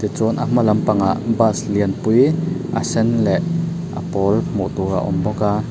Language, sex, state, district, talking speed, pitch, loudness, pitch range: Mizo, male, Mizoram, Aizawl, 190 wpm, 115 Hz, -18 LUFS, 105-165 Hz